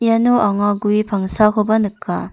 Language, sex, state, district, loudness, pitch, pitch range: Garo, female, Meghalaya, North Garo Hills, -16 LUFS, 210 Hz, 205-220 Hz